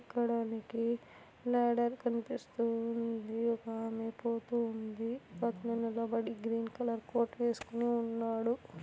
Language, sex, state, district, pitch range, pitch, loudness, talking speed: Telugu, female, Andhra Pradesh, Anantapur, 225-235 Hz, 230 Hz, -36 LUFS, 95 wpm